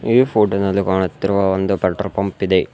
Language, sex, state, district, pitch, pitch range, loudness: Kannada, male, Karnataka, Bidar, 100 Hz, 95-100 Hz, -18 LUFS